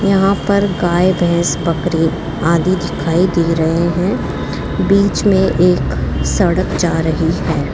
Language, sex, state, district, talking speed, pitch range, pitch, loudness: Hindi, female, Rajasthan, Jaipur, 130 wpm, 165-190 Hz, 175 Hz, -15 LUFS